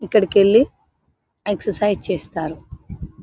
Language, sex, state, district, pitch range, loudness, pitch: Telugu, female, Telangana, Nalgonda, 200-215 Hz, -19 LUFS, 205 Hz